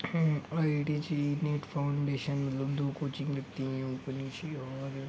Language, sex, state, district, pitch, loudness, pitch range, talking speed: Hindi, male, Uttar Pradesh, Gorakhpur, 145 Hz, -33 LUFS, 135-150 Hz, 70 wpm